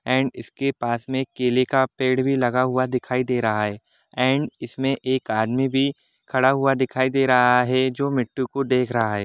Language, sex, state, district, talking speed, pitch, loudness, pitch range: Hindi, male, Jharkhand, Sahebganj, 205 wpm, 130 Hz, -22 LUFS, 125-135 Hz